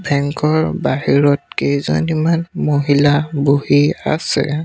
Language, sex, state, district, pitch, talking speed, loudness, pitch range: Assamese, male, Assam, Sonitpur, 145 Hz, 90 wpm, -16 LUFS, 140-155 Hz